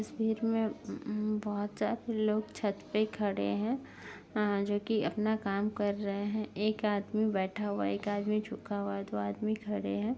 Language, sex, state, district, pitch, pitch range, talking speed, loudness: Hindi, female, Uttar Pradesh, Jyotiba Phule Nagar, 210 Hz, 200-215 Hz, 185 wpm, -33 LUFS